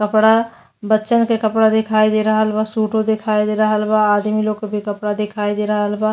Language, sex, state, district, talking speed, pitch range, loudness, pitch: Bhojpuri, female, Uttar Pradesh, Deoria, 215 wpm, 210-220 Hz, -17 LUFS, 215 Hz